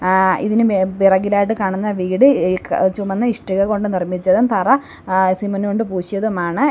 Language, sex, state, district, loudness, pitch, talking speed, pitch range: Malayalam, female, Kerala, Kollam, -17 LUFS, 195 Hz, 145 wpm, 185-220 Hz